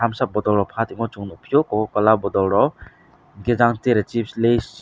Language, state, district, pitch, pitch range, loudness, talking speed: Kokborok, Tripura, West Tripura, 115 Hz, 105-120 Hz, -20 LUFS, 175 wpm